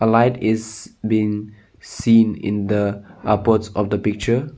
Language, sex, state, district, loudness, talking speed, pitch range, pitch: English, male, Assam, Sonitpur, -19 LUFS, 130 wpm, 105-115 Hz, 110 Hz